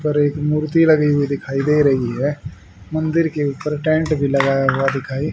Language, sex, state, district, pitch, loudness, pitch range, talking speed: Hindi, male, Haryana, Rohtak, 145 Hz, -18 LUFS, 135-150 Hz, 190 wpm